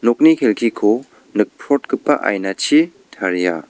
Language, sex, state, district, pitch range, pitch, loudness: Garo, male, Meghalaya, West Garo Hills, 95-140 Hz, 110 Hz, -17 LUFS